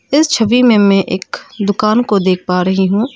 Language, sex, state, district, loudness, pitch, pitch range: Hindi, female, Arunachal Pradesh, Lower Dibang Valley, -13 LUFS, 205 Hz, 190-235 Hz